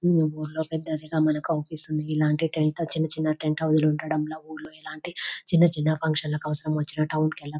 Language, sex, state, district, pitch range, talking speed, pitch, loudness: Telugu, female, Telangana, Nalgonda, 155-160 Hz, 195 wpm, 155 Hz, -25 LUFS